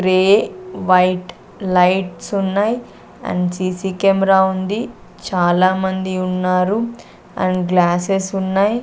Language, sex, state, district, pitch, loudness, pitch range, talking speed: Telugu, female, Andhra Pradesh, Sri Satya Sai, 185 Hz, -17 LUFS, 185-195 Hz, 90 wpm